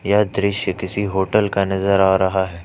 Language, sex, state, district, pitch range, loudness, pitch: Hindi, male, Jharkhand, Ranchi, 95-100 Hz, -18 LUFS, 95 Hz